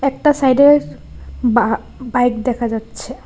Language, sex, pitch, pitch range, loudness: Bengali, female, 250 Hz, 235-275 Hz, -16 LUFS